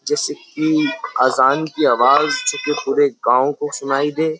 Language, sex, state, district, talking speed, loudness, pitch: Hindi, male, Uttar Pradesh, Jyotiba Phule Nagar, 135 wpm, -17 LUFS, 150 Hz